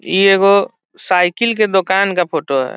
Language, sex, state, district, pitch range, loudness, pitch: Hindi, male, Bihar, Saran, 180-200 Hz, -14 LUFS, 190 Hz